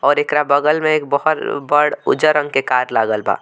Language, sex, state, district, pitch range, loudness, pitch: Bhojpuri, male, Bihar, Muzaffarpur, 135-150 Hz, -16 LUFS, 145 Hz